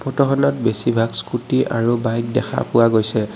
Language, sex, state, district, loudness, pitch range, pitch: Assamese, male, Assam, Kamrup Metropolitan, -18 LUFS, 115-130 Hz, 120 Hz